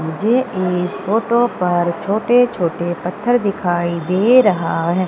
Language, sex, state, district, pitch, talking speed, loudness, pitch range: Hindi, female, Madhya Pradesh, Umaria, 185 Hz, 130 wpm, -17 LUFS, 175-225 Hz